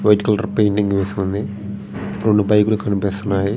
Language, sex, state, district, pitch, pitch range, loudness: Telugu, male, Andhra Pradesh, Srikakulam, 100 Hz, 100-105 Hz, -18 LUFS